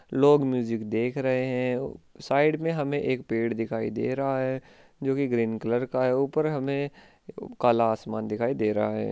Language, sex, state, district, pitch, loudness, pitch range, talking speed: Hindi, male, Rajasthan, Churu, 130 Hz, -26 LUFS, 115-135 Hz, 190 wpm